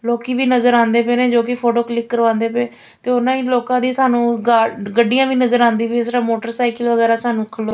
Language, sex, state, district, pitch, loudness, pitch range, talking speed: Punjabi, female, Punjab, Fazilka, 235 Hz, -16 LUFS, 230-245 Hz, 225 wpm